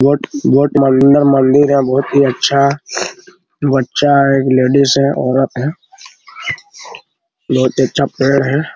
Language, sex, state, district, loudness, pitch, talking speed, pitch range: Hindi, male, Bihar, Araria, -13 LUFS, 140 Hz, 135 wpm, 135-145 Hz